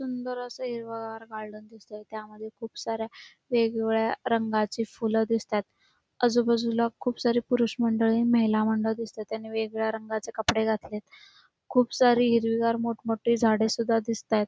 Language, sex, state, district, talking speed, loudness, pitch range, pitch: Marathi, female, Karnataka, Belgaum, 150 wpm, -27 LUFS, 220-235 Hz, 225 Hz